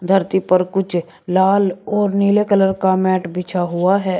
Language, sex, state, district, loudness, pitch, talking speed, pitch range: Hindi, male, Uttar Pradesh, Shamli, -17 LUFS, 190 Hz, 170 wpm, 180-195 Hz